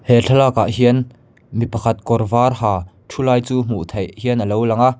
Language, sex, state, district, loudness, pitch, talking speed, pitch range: Mizo, male, Mizoram, Aizawl, -17 LUFS, 120 Hz, 215 wpm, 110-125 Hz